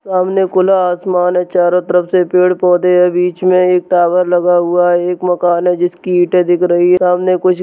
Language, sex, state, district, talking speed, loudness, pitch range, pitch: Hindi, male, Uttar Pradesh, Jyotiba Phule Nagar, 210 wpm, -12 LUFS, 175-180 Hz, 180 Hz